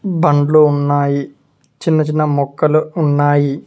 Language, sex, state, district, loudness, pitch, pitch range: Telugu, male, Telangana, Mahabubabad, -14 LUFS, 145 Hz, 145-155 Hz